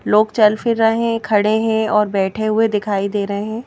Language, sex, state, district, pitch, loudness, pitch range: Hindi, female, Madhya Pradesh, Bhopal, 215 Hz, -17 LUFS, 210-225 Hz